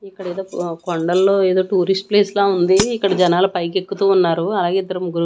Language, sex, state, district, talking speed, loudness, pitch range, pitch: Telugu, female, Andhra Pradesh, Annamaya, 185 wpm, -17 LUFS, 175-195 Hz, 185 Hz